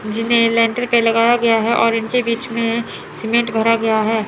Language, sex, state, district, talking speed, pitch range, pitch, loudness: Hindi, female, Chandigarh, Chandigarh, 195 wpm, 225-235 Hz, 230 Hz, -16 LUFS